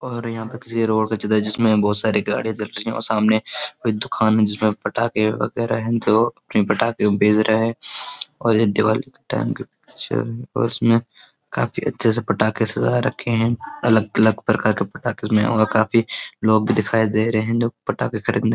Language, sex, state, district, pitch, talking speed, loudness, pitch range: Hindi, male, Uttarakhand, Uttarkashi, 110 Hz, 205 wpm, -20 LUFS, 110-115 Hz